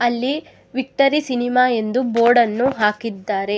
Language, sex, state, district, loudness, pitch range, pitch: Kannada, female, Karnataka, Bangalore, -18 LUFS, 230-260 Hz, 245 Hz